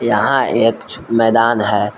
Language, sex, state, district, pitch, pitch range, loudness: Hindi, male, Jharkhand, Palamu, 115 Hz, 105-115 Hz, -15 LUFS